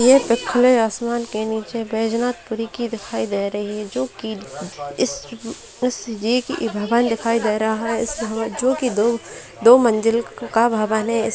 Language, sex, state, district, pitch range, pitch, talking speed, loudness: Hindi, female, Bihar, Saharsa, 215-235 Hz, 225 Hz, 180 wpm, -20 LUFS